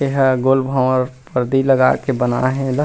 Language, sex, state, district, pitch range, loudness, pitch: Chhattisgarhi, male, Chhattisgarh, Rajnandgaon, 130-135 Hz, -16 LUFS, 130 Hz